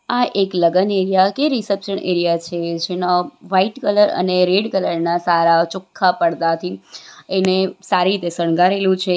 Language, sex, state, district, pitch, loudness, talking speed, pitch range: Gujarati, female, Gujarat, Valsad, 185 Hz, -17 LUFS, 145 wpm, 175-195 Hz